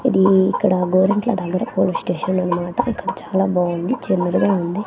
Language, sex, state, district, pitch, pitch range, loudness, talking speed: Telugu, female, Andhra Pradesh, Manyam, 190 Hz, 180-200 Hz, -19 LUFS, 160 wpm